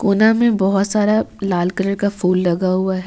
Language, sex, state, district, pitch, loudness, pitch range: Hindi, female, Jharkhand, Ranchi, 195 Hz, -17 LUFS, 185-210 Hz